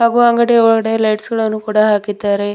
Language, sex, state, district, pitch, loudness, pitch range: Kannada, female, Karnataka, Bidar, 220 Hz, -14 LUFS, 210-230 Hz